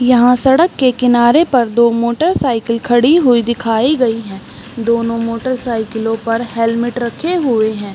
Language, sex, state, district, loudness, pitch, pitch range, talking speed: Hindi, female, Chhattisgarh, Balrampur, -14 LUFS, 235 Hz, 230-250 Hz, 150 wpm